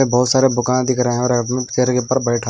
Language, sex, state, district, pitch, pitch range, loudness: Hindi, male, Himachal Pradesh, Shimla, 125 Hz, 120-130 Hz, -17 LUFS